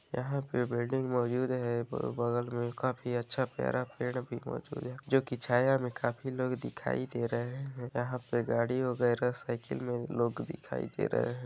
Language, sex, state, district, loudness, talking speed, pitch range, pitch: Hindi, male, Chhattisgarh, Balrampur, -34 LUFS, 190 wpm, 120-130 Hz, 125 Hz